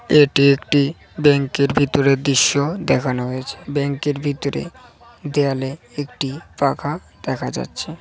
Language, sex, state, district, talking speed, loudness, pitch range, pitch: Bengali, male, West Bengal, Jhargram, 120 wpm, -19 LUFS, 135-145 Hz, 140 Hz